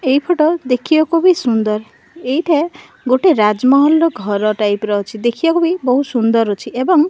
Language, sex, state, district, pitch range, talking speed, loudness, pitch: Odia, female, Odisha, Malkangiri, 220-325 Hz, 175 wpm, -15 LUFS, 265 Hz